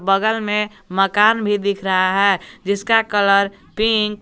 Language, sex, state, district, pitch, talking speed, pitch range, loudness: Hindi, male, Jharkhand, Garhwa, 205 Hz, 155 wpm, 195-210 Hz, -17 LUFS